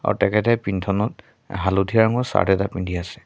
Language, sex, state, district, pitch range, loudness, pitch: Assamese, male, Assam, Sonitpur, 95-110 Hz, -21 LUFS, 100 Hz